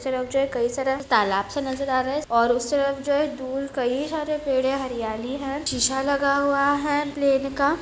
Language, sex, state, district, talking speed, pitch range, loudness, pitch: Hindi, female, Jharkhand, Jamtara, 230 wpm, 260-280 Hz, -23 LUFS, 275 Hz